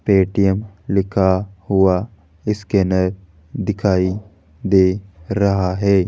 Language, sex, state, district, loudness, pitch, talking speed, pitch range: Hindi, male, Rajasthan, Jaipur, -18 LUFS, 95 Hz, 80 wpm, 95-100 Hz